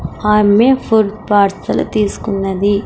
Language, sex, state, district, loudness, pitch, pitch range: Telugu, female, Andhra Pradesh, Sri Satya Sai, -14 LUFS, 210 Hz, 200-215 Hz